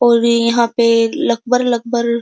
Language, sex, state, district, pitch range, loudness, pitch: Hindi, female, Uttar Pradesh, Jyotiba Phule Nagar, 235-240 Hz, -14 LUFS, 235 Hz